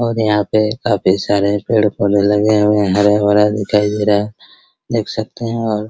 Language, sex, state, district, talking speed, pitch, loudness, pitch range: Hindi, male, Bihar, Araria, 195 wpm, 105 Hz, -15 LUFS, 105-110 Hz